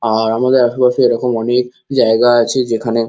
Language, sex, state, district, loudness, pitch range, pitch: Bengali, male, West Bengal, Kolkata, -14 LUFS, 115-125 Hz, 120 Hz